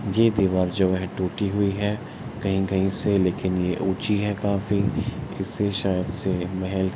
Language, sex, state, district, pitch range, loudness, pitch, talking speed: Hindi, male, Bihar, Araria, 95-105 Hz, -24 LUFS, 95 Hz, 165 wpm